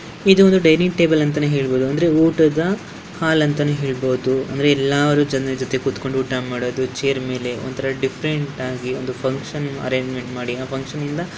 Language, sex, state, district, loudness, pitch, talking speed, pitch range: Kannada, female, Karnataka, Dharwad, -19 LUFS, 135 Hz, 160 wpm, 130-150 Hz